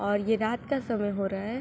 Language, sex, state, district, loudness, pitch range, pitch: Hindi, female, Bihar, Begusarai, -29 LUFS, 205-235 Hz, 220 Hz